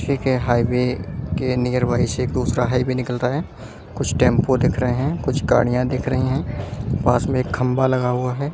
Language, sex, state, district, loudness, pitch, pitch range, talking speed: Hindi, male, Delhi, New Delhi, -20 LUFS, 125 Hz, 125-130 Hz, 195 wpm